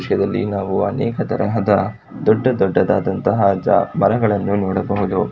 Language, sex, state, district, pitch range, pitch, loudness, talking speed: Kannada, male, Karnataka, Shimoga, 100-115 Hz, 100 Hz, -18 LUFS, 100 wpm